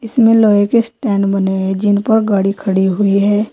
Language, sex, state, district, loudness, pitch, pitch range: Hindi, female, Uttar Pradesh, Saharanpur, -13 LUFS, 205 Hz, 195-220 Hz